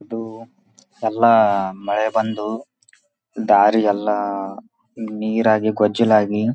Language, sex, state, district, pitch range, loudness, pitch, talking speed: Kannada, male, Karnataka, Raichur, 105-110 Hz, -18 LUFS, 110 Hz, 130 wpm